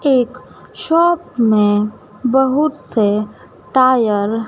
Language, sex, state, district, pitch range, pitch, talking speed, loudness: Hindi, female, Madhya Pradesh, Dhar, 210-265 Hz, 245 Hz, 95 wpm, -15 LUFS